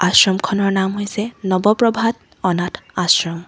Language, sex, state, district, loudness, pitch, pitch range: Assamese, female, Assam, Sonitpur, -17 LUFS, 190 Hz, 180-210 Hz